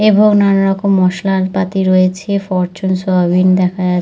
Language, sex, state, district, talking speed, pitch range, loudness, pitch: Bengali, female, West Bengal, Dakshin Dinajpur, 135 wpm, 185-195 Hz, -13 LUFS, 190 Hz